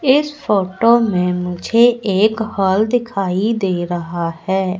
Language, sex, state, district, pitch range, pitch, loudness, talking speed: Hindi, female, Madhya Pradesh, Katni, 180-230 Hz, 195 Hz, -16 LUFS, 125 wpm